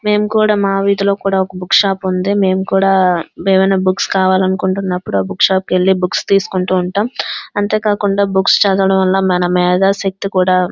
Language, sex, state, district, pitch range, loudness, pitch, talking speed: Telugu, female, Andhra Pradesh, Srikakulam, 185-195 Hz, -14 LUFS, 190 Hz, 80 wpm